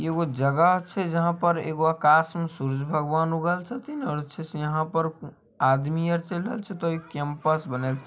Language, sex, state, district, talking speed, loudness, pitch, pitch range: Maithili, male, Bihar, Samastipur, 185 wpm, -25 LUFS, 160 Hz, 150-170 Hz